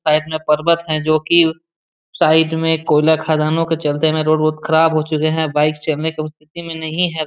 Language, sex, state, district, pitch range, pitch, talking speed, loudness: Hindi, male, Jharkhand, Jamtara, 155-160 Hz, 155 Hz, 200 wpm, -16 LUFS